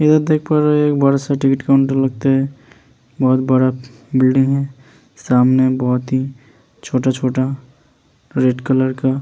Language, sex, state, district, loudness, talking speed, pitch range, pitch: Hindi, male, Uttar Pradesh, Hamirpur, -16 LUFS, 150 wpm, 130-135 Hz, 130 Hz